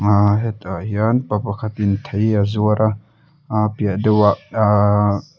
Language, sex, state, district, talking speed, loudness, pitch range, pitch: Mizo, male, Mizoram, Aizawl, 165 wpm, -18 LUFS, 105-110 Hz, 105 Hz